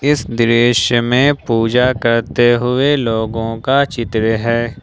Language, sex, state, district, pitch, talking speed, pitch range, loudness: Hindi, male, Jharkhand, Ranchi, 120 Hz, 125 wpm, 115-130 Hz, -14 LUFS